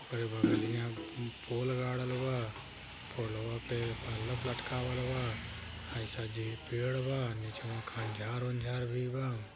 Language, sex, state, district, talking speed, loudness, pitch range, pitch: Hindi, male, Uttar Pradesh, Gorakhpur, 120 wpm, -37 LUFS, 110-125 Hz, 120 Hz